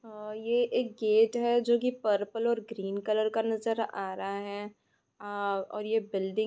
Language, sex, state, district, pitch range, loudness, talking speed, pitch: Hindi, female, West Bengal, Purulia, 205-230 Hz, -30 LUFS, 195 wpm, 215 Hz